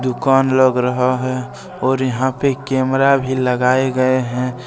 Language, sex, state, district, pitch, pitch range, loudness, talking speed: Hindi, male, Jharkhand, Deoghar, 130 Hz, 125-130 Hz, -16 LUFS, 165 wpm